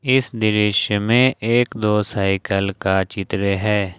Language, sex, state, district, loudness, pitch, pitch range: Hindi, male, Jharkhand, Ranchi, -19 LUFS, 105 Hz, 100-115 Hz